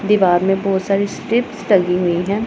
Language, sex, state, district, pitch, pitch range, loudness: Hindi, female, Punjab, Pathankot, 195 Hz, 185-205 Hz, -17 LUFS